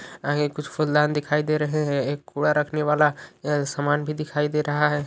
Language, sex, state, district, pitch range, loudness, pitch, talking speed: Hindi, male, Uttar Pradesh, Ghazipur, 145-150 Hz, -23 LUFS, 150 Hz, 200 wpm